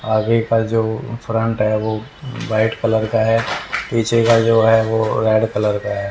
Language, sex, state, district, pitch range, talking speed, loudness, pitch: Hindi, male, Haryana, Rohtak, 110-115 Hz, 185 wpm, -17 LUFS, 110 Hz